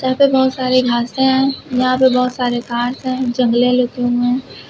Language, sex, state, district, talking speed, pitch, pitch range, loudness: Hindi, female, Uttar Pradesh, Lucknow, 205 wpm, 255 Hz, 245-260 Hz, -16 LUFS